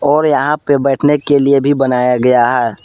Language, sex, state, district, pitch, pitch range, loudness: Hindi, male, Jharkhand, Palamu, 140 Hz, 130-145 Hz, -12 LUFS